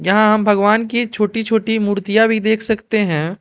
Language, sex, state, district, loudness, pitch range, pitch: Hindi, male, Arunachal Pradesh, Lower Dibang Valley, -16 LUFS, 205-225 Hz, 215 Hz